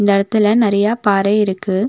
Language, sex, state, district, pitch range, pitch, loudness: Tamil, female, Tamil Nadu, Nilgiris, 200-215 Hz, 205 Hz, -15 LUFS